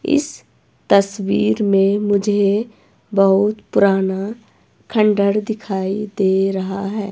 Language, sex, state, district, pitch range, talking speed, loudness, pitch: Hindi, female, Himachal Pradesh, Shimla, 195-210 Hz, 95 wpm, -17 LUFS, 200 Hz